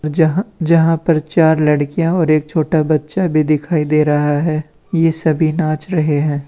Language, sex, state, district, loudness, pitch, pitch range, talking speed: Hindi, male, Uttar Pradesh, Lalitpur, -15 LUFS, 155 Hz, 150-165 Hz, 175 wpm